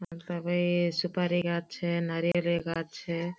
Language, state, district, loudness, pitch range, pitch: Surjapuri, Bihar, Kishanganj, -30 LUFS, 170-175 Hz, 170 Hz